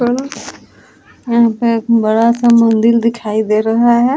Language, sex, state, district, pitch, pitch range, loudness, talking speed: Hindi, female, Bihar, Vaishali, 230 Hz, 225-235 Hz, -12 LUFS, 145 wpm